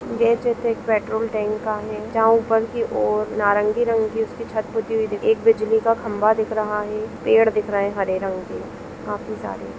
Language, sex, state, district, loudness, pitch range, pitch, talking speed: Hindi, female, Jharkhand, Jamtara, -21 LUFS, 210-230 Hz, 220 Hz, 215 wpm